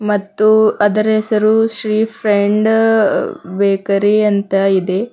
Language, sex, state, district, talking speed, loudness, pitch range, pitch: Kannada, female, Karnataka, Bidar, 95 wpm, -14 LUFS, 200-220 Hz, 210 Hz